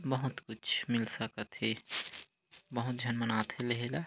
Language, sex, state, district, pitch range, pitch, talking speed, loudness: Hindi, male, Chhattisgarh, Korba, 110-125 Hz, 120 Hz, 160 wpm, -35 LUFS